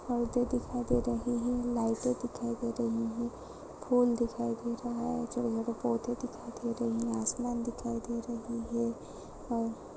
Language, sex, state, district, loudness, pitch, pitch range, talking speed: Hindi, female, Goa, North and South Goa, -33 LUFS, 235 Hz, 230-240 Hz, 170 wpm